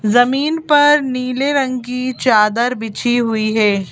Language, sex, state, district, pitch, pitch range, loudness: Hindi, female, Madhya Pradesh, Bhopal, 250 Hz, 225-265 Hz, -15 LUFS